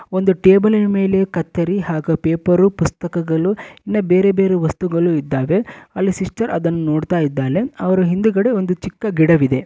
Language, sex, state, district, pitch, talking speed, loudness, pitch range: Kannada, male, Karnataka, Bellary, 180 Hz, 145 wpm, -17 LUFS, 165-195 Hz